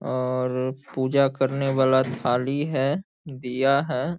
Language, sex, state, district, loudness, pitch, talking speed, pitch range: Hindi, male, Bihar, Saharsa, -24 LUFS, 135 Hz, 115 wpm, 130-140 Hz